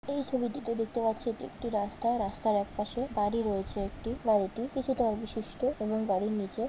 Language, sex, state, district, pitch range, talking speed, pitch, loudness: Bengali, female, West Bengal, Malda, 210-240 Hz, 160 wpm, 225 Hz, -32 LUFS